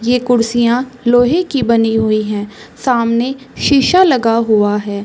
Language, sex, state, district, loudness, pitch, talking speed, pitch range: Hindi, female, Chhattisgarh, Raigarh, -13 LUFS, 235 Hz, 145 wpm, 225-255 Hz